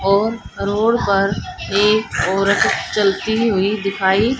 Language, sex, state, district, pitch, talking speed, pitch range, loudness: Hindi, female, Haryana, Jhajjar, 200 Hz, 125 wpm, 195-215 Hz, -17 LUFS